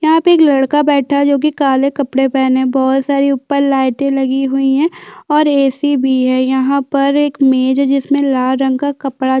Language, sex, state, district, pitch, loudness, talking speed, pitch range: Hindi, female, Chhattisgarh, Jashpur, 275 Hz, -13 LUFS, 195 wpm, 265-285 Hz